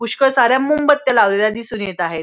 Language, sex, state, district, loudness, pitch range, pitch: Marathi, female, Maharashtra, Nagpur, -15 LUFS, 205-270 Hz, 235 Hz